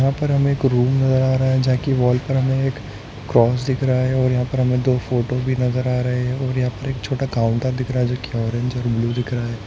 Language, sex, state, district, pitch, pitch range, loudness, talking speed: Hindi, male, Bihar, Saran, 125 Hz, 125-130 Hz, -20 LUFS, 290 wpm